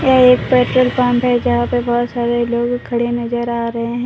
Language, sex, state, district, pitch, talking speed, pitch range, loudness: Hindi, female, Jharkhand, Deoghar, 240 Hz, 220 wpm, 240-250 Hz, -15 LUFS